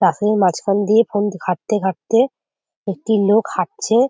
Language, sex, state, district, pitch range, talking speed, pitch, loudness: Bengali, female, West Bengal, Jhargram, 195-225 Hz, 130 wpm, 205 Hz, -18 LUFS